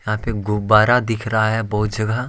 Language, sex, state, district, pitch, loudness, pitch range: Hindi, male, Jharkhand, Ranchi, 110 Hz, -18 LUFS, 105-115 Hz